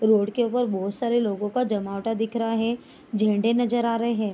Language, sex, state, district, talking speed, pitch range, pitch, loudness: Hindi, female, Bihar, Bhagalpur, 220 wpm, 210-235 Hz, 225 Hz, -24 LUFS